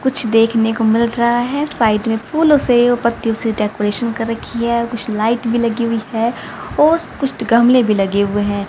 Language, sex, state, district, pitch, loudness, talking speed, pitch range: Hindi, female, Haryana, Rohtak, 230 Hz, -16 LUFS, 215 wpm, 225-240 Hz